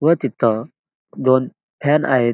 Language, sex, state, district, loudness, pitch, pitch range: Marathi, male, Maharashtra, Dhule, -18 LUFS, 130 Hz, 120-145 Hz